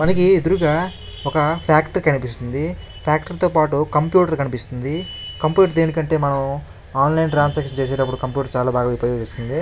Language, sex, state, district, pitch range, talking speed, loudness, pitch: Telugu, male, Andhra Pradesh, Krishna, 130-160 Hz, 130 wpm, -19 LUFS, 150 Hz